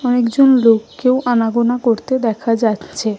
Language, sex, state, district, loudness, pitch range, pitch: Bengali, female, West Bengal, Malda, -15 LUFS, 225-250 Hz, 235 Hz